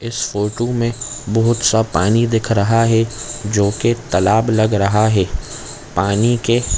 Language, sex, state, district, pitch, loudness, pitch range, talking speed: Hindi, male, Chhattisgarh, Bilaspur, 115 Hz, -16 LUFS, 105-115 Hz, 140 wpm